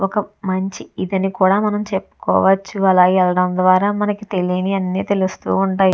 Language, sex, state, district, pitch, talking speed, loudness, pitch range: Telugu, female, Andhra Pradesh, Visakhapatnam, 190 Hz, 140 wpm, -17 LUFS, 185-195 Hz